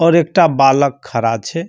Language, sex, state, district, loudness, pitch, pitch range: Maithili, male, Bihar, Samastipur, -14 LUFS, 140 Hz, 130-165 Hz